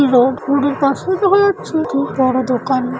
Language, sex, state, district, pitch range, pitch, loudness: Bengali, female, West Bengal, Jalpaiguri, 260-320 Hz, 275 Hz, -16 LUFS